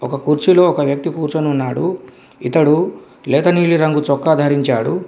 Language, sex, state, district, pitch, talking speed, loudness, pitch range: Telugu, male, Telangana, Komaram Bheem, 150 Hz, 130 wpm, -15 LUFS, 140-170 Hz